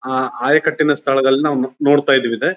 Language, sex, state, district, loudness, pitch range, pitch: Kannada, male, Karnataka, Bijapur, -16 LUFS, 130-145 Hz, 135 Hz